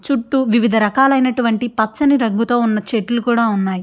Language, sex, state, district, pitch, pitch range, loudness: Telugu, female, Andhra Pradesh, Srikakulam, 235 Hz, 220-255 Hz, -16 LUFS